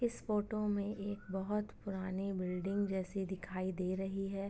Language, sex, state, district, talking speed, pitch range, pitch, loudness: Hindi, female, Jharkhand, Jamtara, 160 wpm, 190-205 Hz, 195 Hz, -39 LUFS